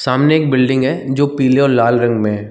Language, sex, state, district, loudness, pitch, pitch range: Hindi, male, Chhattisgarh, Bilaspur, -14 LUFS, 130 Hz, 120-140 Hz